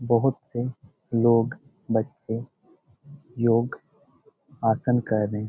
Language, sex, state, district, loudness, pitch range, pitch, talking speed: Hindi, male, Chhattisgarh, Bastar, -25 LUFS, 115-130 Hz, 120 Hz, 100 wpm